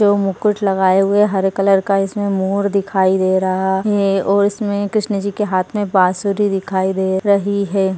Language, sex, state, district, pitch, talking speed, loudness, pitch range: Hindi, female, Maharashtra, Solapur, 195 Hz, 190 wpm, -16 LUFS, 190-200 Hz